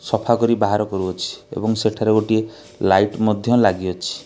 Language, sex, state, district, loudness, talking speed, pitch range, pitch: Odia, male, Odisha, Khordha, -19 LUFS, 140 wpm, 95-110 Hz, 110 Hz